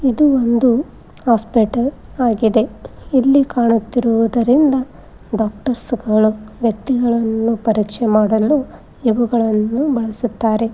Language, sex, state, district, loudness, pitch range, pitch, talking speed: Kannada, female, Karnataka, Koppal, -16 LUFS, 220-255 Hz, 235 Hz, 65 wpm